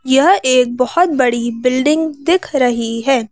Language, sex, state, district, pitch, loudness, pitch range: Hindi, female, Madhya Pradesh, Bhopal, 260 Hz, -14 LUFS, 245-300 Hz